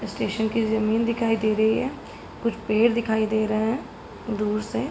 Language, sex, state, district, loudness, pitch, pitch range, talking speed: Hindi, female, Uttar Pradesh, Hamirpur, -24 LUFS, 220 Hz, 215-230 Hz, 185 wpm